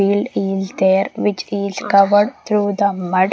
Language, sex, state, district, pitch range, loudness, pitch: English, female, Maharashtra, Gondia, 195-205 Hz, -17 LUFS, 200 Hz